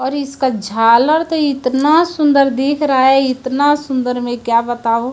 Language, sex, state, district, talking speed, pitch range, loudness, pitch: Hindi, female, Chhattisgarh, Raipur, 165 wpm, 245-290 Hz, -14 LUFS, 265 Hz